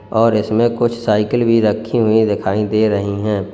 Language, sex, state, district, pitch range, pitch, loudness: Hindi, male, Uttar Pradesh, Lalitpur, 105-115 Hz, 110 Hz, -16 LUFS